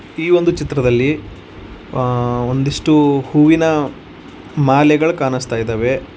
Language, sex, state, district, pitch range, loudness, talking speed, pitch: Kannada, male, Karnataka, Koppal, 120-150 Hz, -15 LUFS, 80 wpm, 135 Hz